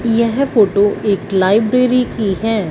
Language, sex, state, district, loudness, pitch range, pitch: Hindi, female, Punjab, Fazilka, -14 LUFS, 205-235 Hz, 220 Hz